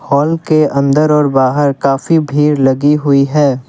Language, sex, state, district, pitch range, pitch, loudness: Hindi, male, Assam, Kamrup Metropolitan, 140-150 Hz, 145 Hz, -12 LUFS